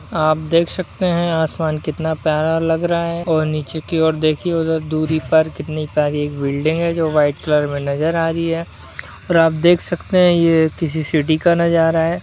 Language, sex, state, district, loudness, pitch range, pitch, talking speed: Hindi, male, Rajasthan, Churu, -17 LUFS, 155-165 Hz, 160 Hz, 205 wpm